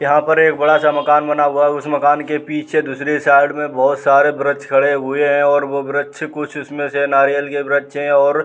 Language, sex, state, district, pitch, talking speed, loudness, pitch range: Hindi, male, Uttar Pradesh, Muzaffarnagar, 145 Hz, 240 wpm, -15 LUFS, 140-150 Hz